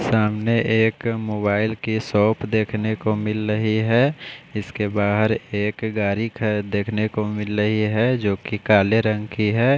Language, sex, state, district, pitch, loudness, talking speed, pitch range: Hindi, male, Odisha, Khordha, 110 Hz, -21 LUFS, 155 wpm, 105-110 Hz